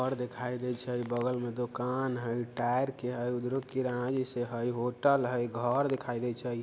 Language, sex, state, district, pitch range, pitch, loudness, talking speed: Bajjika, male, Bihar, Vaishali, 120-130 Hz, 125 Hz, -33 LUFS, 210 wpm